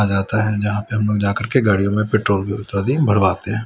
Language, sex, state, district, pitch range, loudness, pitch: Hindi, male, Delhi, New Delhi, 100-110 Hz, -18 LUFS, 105 Hz